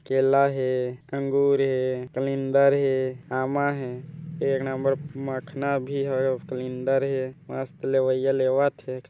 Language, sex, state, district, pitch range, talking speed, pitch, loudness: Chhattisgarhi, male, Chhattisgarh, Bilaspur, 130-140 Hz, 140 wpm, 135 Hz, -25 LUFS